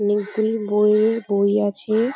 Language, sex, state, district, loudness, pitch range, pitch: Bengali, female, West Bengal, Paschim Medinipur, -20 LUFS, 205-220 Hz, 210 Hz